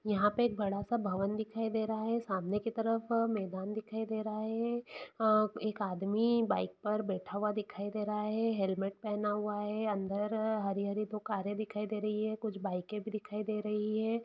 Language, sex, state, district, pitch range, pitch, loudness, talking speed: Hindi, female, Bihar, Saran, 205-220 Hz, 210 Hz, -35 LUFS, 200 wpm